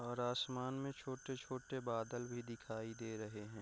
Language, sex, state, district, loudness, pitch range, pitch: Hindi, male, Chhattisgarh, Raigarh, -45 LUFS, 115-130 Hz, 120 Hz